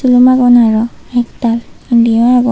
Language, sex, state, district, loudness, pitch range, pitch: Chakma, female, Tripura, Unakoti, -11 LUFS, 235-250 Hz, 240 Hz